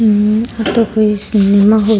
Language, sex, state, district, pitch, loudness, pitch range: Rajasthani, female, Rajasthan, Churu, 215 Hz, -12 LUFS, 210-220 Hz